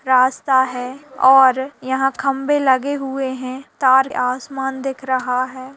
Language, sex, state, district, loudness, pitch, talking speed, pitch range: Hindi, female, Bihar, Saharsa, -18 LUFS, 265 Hz, 135 wpm, 260-270 Hz